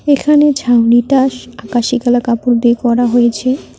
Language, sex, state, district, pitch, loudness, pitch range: Bengali, female, West Bengal, Cooch Behar, 245 Hz, -12 LUFS, 240-265 Hz